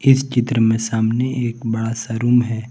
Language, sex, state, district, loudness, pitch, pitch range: Hindi, male, Jharkhand, Garhwa, -18 LUFS, 115 Hz, 115-125 Hz